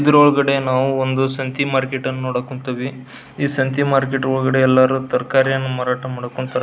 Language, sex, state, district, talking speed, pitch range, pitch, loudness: Kannada, male, Karnataka, Belgaum, 145 wpm, 130-135 Hz, 130 Hz, -18 LUFS